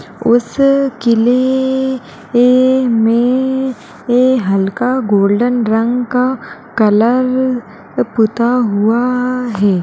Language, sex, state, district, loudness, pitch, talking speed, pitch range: Hindi, female, Uttar Pradesh, Jalaun, -13 LUFS, 245 Hz, 85 wpm, 225-255 Hz